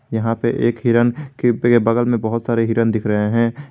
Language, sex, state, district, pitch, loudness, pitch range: Hindi, male, Jharkhand, Garhwa, 115 Hz, -18 LUFS, 115-120 Hz